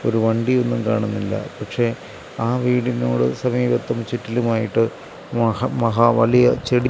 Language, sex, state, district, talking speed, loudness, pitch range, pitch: Malayalam, male, Kerala, Kasaragod, 105 wpm, -20 LUFS, 110-125 Hz, 115 Hz